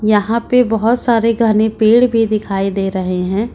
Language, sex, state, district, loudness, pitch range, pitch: Hindi, female, Uttar Pradesh, Lucknow, -14 LUFS, 200-230 Hz, 220 Hz